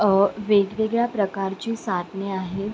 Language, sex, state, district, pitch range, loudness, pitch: Marathi, female, Maharashtra, Sindhudurg, 195-215 Hz, -23 LUFS, 200 Hz